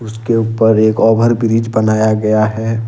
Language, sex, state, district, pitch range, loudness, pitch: Hindi, male, Jharkhand, Ranchi, 110-115 Hz, -13 LUFS, 110 Hz